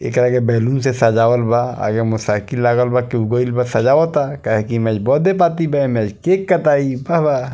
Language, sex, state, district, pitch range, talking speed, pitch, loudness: Bhojpuri, male, Bihar, East Champaran, 115-140 Hz, 185 wpm, 125 Hz, -16 LUFS